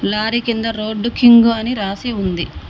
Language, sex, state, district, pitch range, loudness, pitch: Telugu, female, Telangana, Mahabubabad, 210-235 Hz, -16 LUFS, 225 Hz